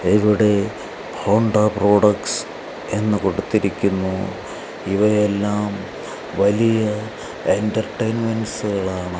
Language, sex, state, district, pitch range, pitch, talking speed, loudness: Malayalam, male, Kerala, Kasaragod, 100-105 Hz, 105 Hz, 60 wpm, -20 LUFS